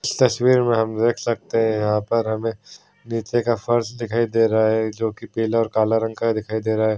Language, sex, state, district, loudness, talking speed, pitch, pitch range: Hindi, male, Bihar, Saharsa, -21 LUFS, 250 wpm, 115 Hz, 110-115 Hz